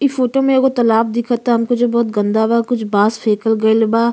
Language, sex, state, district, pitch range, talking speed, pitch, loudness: Bhojpuri, female, Uttar Pradesh, Gorakhpur, 220-245 Hz, 230 wpm, 235 Hz, -15 LUFS